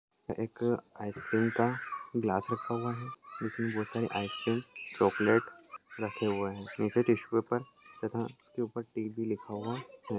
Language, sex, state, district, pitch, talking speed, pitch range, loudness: Hindi, male, Maharashtra, Nagpur, 115 Hz, 155 wpm, 110-120 Hz, -34 LUFS